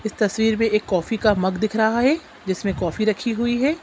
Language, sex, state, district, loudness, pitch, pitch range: Hindi, female, Chhattisgarh, Sukma, -21 LUFS, 215 Hz, 200-230 Hz